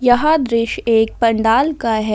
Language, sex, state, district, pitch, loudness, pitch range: Hindi, female, Jharkhand, Ranchi, 230 Hz, -15 LUFS, 225-250 Hz